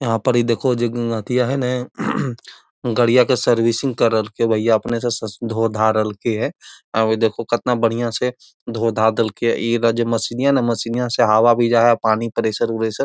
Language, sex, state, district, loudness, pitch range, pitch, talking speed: Magahi, male, Bihar, Gaya, -18 LUFS, 115-120 Hz, 115 Hz, 220 wpm